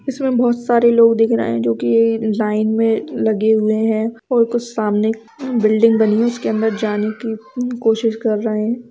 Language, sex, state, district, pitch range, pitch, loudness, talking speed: Hindi, female, Bihar, East Champaran, 215-235 Hz, 225 Hz, -17 LUFS, 200 wpm